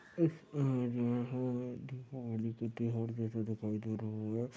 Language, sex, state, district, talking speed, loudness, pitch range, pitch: Hindi, male, Chhattisgarh, Raigarh, 155 wpm, -38 LUFS, 110-125 Hz, 120 Hz